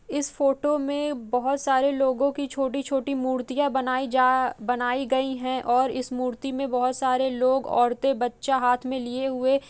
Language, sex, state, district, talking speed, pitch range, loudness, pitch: Hindi, female, Uttar Pradesh, Jalaun, 180 wpm, 255-275 Hz, -25 LUFS, 265 Hz